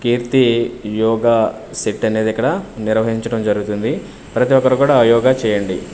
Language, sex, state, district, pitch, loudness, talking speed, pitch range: Telugu, male, Andhra Pradesh, Manyam, 115 Hz, -16 LUFS, 110 wpm, 110-120 Hz